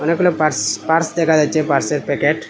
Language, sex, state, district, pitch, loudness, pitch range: Bengali, male, Assam, Hailakandi, 160 Hz, -17 LUFS, 150-165 Hz